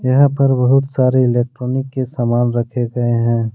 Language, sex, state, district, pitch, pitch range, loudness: Hindi, male, Jharkhand, Deoghar, 125 Hz, 120-130 Hz, -16 LUFS